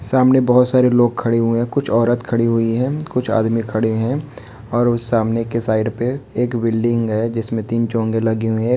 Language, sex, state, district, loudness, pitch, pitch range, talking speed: Hindi, male, Bihar, Begusarai, -17 LUFS, 115 Hz, 115-125 Hz, 210 wpm